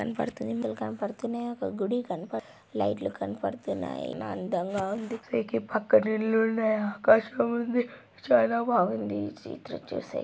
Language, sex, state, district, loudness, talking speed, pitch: Telugu, female, Andhra Pradesh, Anantapur, -29 LUFS, 110 wpm, 215 Hz